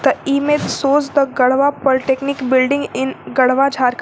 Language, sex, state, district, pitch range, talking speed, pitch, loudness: English, female, Jharkhand, Garhwa, 260-280 Hz, 165 wpm, 275 Hz, -16 LUFS